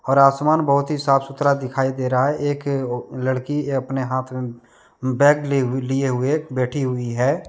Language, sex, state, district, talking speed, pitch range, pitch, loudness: Hindi, male, Jharkhand, Deoghar, 185 wpm, 130-140 Hz, 135 Hz, -20 LUFS